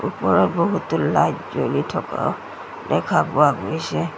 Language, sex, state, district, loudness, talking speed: Assamese, female, Assam, Sonitpur, -20 LUFS, 115 wpm